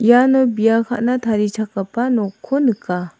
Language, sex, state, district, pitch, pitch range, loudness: Garo, female, Meghalaya, South Garo Hills, 230 Hz, 210-245 Hz, -17 LUFS